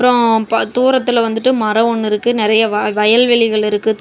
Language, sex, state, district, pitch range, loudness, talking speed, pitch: Tamil, female, Tamil Nadu, Namakkal, 215-240 Hz, -13 LUFS, 165 wpm, 225 Hz